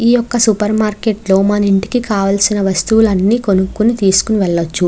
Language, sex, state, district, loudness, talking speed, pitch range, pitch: Telugu, female, Andhra Pradesh, Krishna, -13 LUFS, 145 wpm, 195-220 Hz, 205 Hz